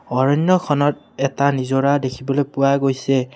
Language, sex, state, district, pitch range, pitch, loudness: Assamese, male, Assam, Kamrup Metropolitan, 135-145 Hz, 140 Hz, -18 LUFS